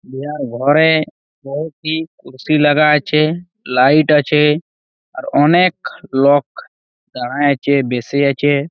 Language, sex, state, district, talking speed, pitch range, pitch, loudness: Bengali, male, West Bengal, Malda, 95 wpm, 135-155 Hz, 145 Hz, -14 LUFS